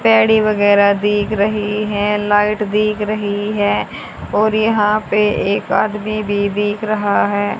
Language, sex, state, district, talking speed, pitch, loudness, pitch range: Hindi, female, Haryana, Charkhi Dadri, 140 wpm, 210 Hz, -16 LUFS, 205-215 Hz